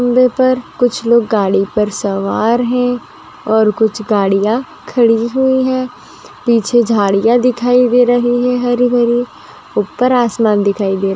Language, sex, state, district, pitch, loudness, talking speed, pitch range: Magahi, female, Bihar, Gaya, 240 Hz, -13 LUFS, 155 wpm, 215-245 Hz